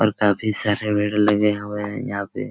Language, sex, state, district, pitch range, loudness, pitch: Hindi, male, Bihar, Araria, 105-110 Hz, -21 LUFS, 105 Hz